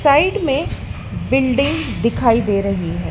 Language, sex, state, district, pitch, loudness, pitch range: Hindi, female, Madhya Pradesh, Dhar, 265 Hz, -18 LUFS, 200-285 Hz